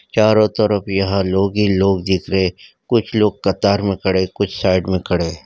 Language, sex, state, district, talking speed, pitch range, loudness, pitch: Hindi, female, Maharashtra, Nagpur, 185 wpm, 95-105 Hz, -17 LUFS, 95 Hz